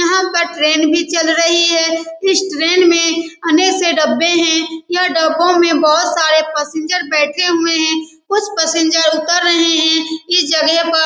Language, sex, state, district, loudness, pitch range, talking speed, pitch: Hindi, female, Bihar, Saran, -13 LUFS, 320-345 Hz, 170 wpm, 330 Hz